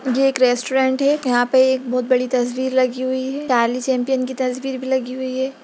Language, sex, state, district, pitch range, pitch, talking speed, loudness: Hindi, female, Bihar, Jahanabad, 250-265 Hz, 260 Hz, 215 wpm, -19 LUFS